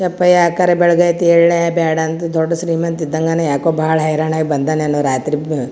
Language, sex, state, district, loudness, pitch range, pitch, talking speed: Kannada, female, Karnataka, Gulbarga, -15 LUFS, 155-170 Hz, 165 Hz, 170 wpm